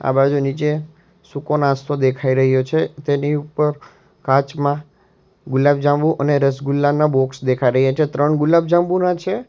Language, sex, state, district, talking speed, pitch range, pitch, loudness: Gujarati, male, Gujarat, Valsad, 140 wpm, 135-155 Hz, 145 Hz, -18 LUFS